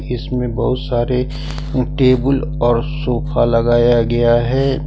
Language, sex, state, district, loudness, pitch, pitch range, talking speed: Hindi, male, Jharkhand, Ranchi, -16 LUFS, 125 Hz, 120-140 Hz, 110 wpm